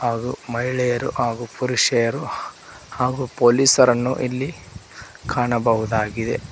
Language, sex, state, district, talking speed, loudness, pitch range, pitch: Kannada, male, Karnataka, Koppal, 75 wpm, -20 LUFS, 115-125 Hz, 120 Hz